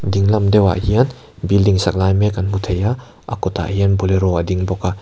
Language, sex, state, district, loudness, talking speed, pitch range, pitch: Mizo, male, Mizoram, Aizawl, -17 LUFS, 225 wpm, 95-105 Hz, 100 Hz